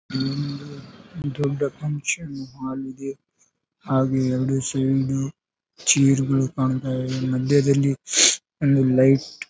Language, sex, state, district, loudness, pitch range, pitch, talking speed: Kannada, male, Karnataka, Bijapur, -22 LUFS, 130-140 Hz, 135 Hz, 100 wpm